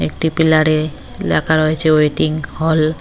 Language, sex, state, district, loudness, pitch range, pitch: Bengali, female, West Bengal, Cooch Behar, -15 LUFS, 155-160 Hz, 155 Hz